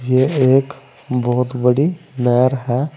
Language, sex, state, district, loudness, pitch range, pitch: Hindi, male, Uttar Pradesh, Saharanpur, -17 LUFS, 125-140 Hz, 130 Hz